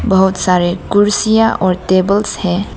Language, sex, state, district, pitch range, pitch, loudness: Hindi, female, Arunachal Pradesh, Lower Dibang Valley, 185-205 Hz, 190 Hz, -13 LUFS